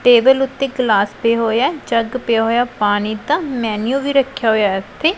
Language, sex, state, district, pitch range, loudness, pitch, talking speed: Punjabi, female, Punjab, Pathankot, 220-270 Hz, -16 LUFS, 240 Hz, 220 wpm